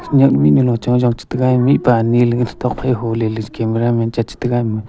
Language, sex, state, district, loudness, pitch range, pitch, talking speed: Wancho, male, Arunachal Pradesh, Longding, -15 LUFS, 115-125 Hz, 120 Hz, 185 wpm